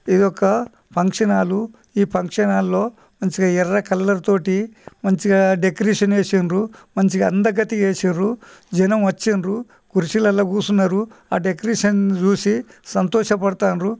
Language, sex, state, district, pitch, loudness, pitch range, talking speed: Telugu, male, Telangana, Nalgonda, 200 Hz, -19 LUFS, 190-215 Hz, 110 wpm